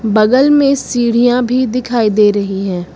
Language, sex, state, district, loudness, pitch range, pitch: Hindi, female, Uttar Pradesh, Lucknow, -12 LUFS, 210-255 Hz, 235 Hz